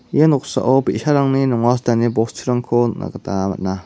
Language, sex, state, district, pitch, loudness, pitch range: Garo, male, Meghalaya, West Garo Hills, 120 Hz, -18 LUFS, 115-135 Hz